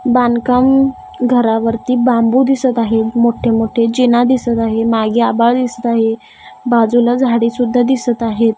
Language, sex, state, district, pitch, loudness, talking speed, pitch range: Marathi, female, Maharashtra, Gondia, 240 Hz, -13 LUFS, 135 wpm, 230-250 Hz